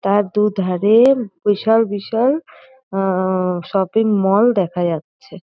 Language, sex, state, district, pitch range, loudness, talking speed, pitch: Bengali, female, West Bengal, North 24 Parganas, 190-225 Hz, -17 LUFS, 100 wpm, 205 Hz